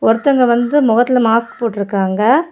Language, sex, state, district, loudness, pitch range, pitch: Tamil, female, Tamil Nadu, Kanyakumari, -14 LUFS, 225-255 Hz, 235 Hz